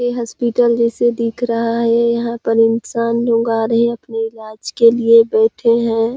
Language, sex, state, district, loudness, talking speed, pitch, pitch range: Hindi, female, Chhattisgarh, Sarguja, -15 LUFS, 185 wpm, 230 Hz, 230-235 Hz